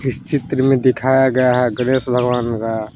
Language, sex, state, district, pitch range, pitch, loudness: Hindi, male, Jharkhand, Palamu, 125-130 Hz, 125 Hz, -16 LUFS